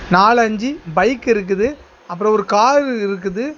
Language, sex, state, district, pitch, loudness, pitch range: Tamil, male, Tamil Nadu, Kanyakumari, 220 Hz, -16 LUFS, 200-245 Hz